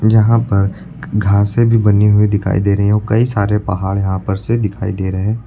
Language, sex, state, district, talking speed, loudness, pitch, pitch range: Hindi, male, Uttar Pradesh, Lucknow, 230 wpm, -14 LUFS, 105 Hz, 100-110 Hz